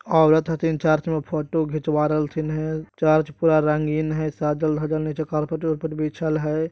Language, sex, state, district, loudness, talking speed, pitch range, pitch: Magahi, male, Bihar, Jahanabad, -22 LUFS, 195 wpm, 155-160 Hz, 155 Hz